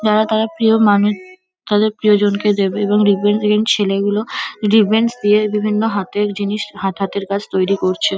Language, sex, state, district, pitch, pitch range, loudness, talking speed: Bengali, female, West Bengal, Kolkata, 210 Hz, 200-215 Hz, -16 LUFS, 125 wpm